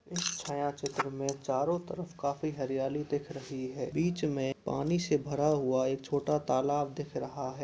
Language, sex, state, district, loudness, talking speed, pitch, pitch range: Hindi, male, Uttar Pradesh, Etah, -33 LUFS, 175 wpm, 145 Hz, 135-150 Hz